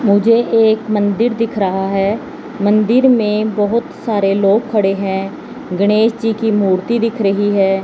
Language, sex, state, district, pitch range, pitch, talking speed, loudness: Hindi, male, Chandigarh, Chandigarh, 200-225 Hz, 210 Hz, 155 wpm, -15 LUFS